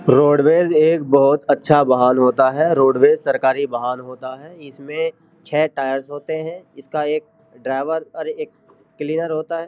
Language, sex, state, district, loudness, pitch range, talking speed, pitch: Hindi, male, Uttar Pradesh, Jyotiba Phule Nagar, -17 LUFS, 135-160 Hz, 155 wpm, 150 Hz